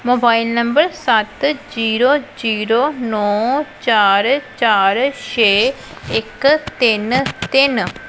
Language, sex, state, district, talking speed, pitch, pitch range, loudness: Punjabi, female, Punjab, Pathankot, 90 wpm, 240 Hz, 220-280 Hz, -15 LUFS